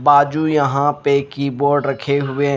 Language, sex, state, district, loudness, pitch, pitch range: Hindi, male, Haryana, Rohtak, -17 LUFS, 140 Hz, 140-145 Hz